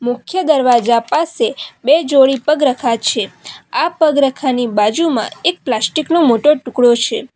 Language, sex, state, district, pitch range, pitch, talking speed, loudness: Gujarati, female, Gujarat, Valsad, 240-315 Hz, 270 Hz, 155 wpm, -14 LUFS